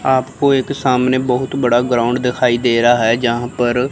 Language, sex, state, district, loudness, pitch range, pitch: Hindi, female, Chandigarh, Chandigarh, -15 LUFS, 120-130 Hz, 125 Hz